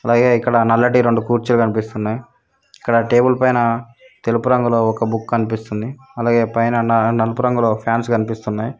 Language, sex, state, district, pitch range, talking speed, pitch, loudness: Telugu, female, Telangana, Mahabubabad, 115-120 Hz, 135 wpm, 115 Hz, -17 LUFS